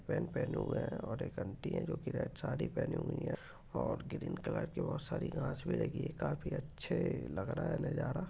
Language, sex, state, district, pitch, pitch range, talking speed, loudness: Hindi, male, Maharashtra, Dhule, 150 Hz, 120-160 Hz, 200 wpm, -39 LUFS